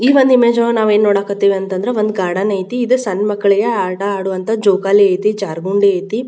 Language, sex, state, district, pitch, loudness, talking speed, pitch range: Kannada, female, Karnataka, Bijapur, 200 Hz, -14 LUFS, 180 wpm, 195-225 Hz